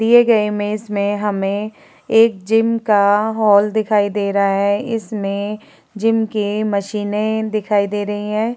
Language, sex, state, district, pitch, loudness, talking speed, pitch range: Hindi, female, Uttar Pradesh, Jalaun, 210 Hz, -17 LUFS, 145 wpm, 205-220 Hz